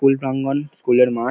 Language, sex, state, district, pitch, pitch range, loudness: Bengali, male, West Bengal, Paschim Medinipur, 135 Hz, 125-135 Hz, -19 LUFS